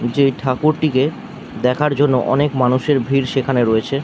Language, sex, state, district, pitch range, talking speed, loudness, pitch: Bengali, male, West Bengal, Dakshin Dinajpur, 130-145 Hz, 135 wpm, -17 LUFS, 135 Hz